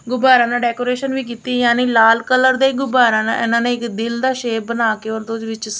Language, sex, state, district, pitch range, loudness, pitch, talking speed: Punjabi, female, Punjab, Kapurthala, 225-255 Hz, -16 LUFS, 235 Hz, 195 wpm